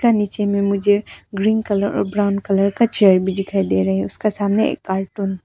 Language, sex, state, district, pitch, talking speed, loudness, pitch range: Hindi, female, Arunachal Pradesh, Papum Pare, 200 Hz, 230 wpm, -18 LUFS, 195-210 Hz